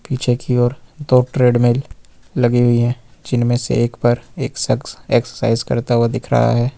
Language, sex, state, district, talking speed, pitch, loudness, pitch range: Hindi, male, Jharkhand, Ranchi, 175 wpm, 120 Hz, -17 LUFS, 120-125 Hz